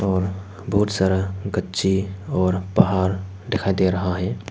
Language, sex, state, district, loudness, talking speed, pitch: Hindi, male, Arunachal Pradesh, Papum Pare, -22 LUFS, 135 wpm, 95 Hz